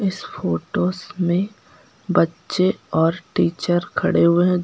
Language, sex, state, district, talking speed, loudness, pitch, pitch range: Hindi, female, Uttar Pradesh, Lucknow, 115 wpm, -21 LUFS, 175 Hz, 170-185 Hz